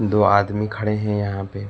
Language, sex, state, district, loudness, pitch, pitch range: Hindi, male, Karnataka, Bangalore, -21 LUFS, 105 Hz, 100-105 Hz